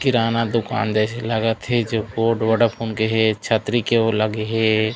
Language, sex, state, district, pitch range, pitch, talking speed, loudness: Chhattisgarhi, male, Chhattisgarh, Raigarh, 110-115 Hz, 110 Hz, 180 wpm, -20 LUFS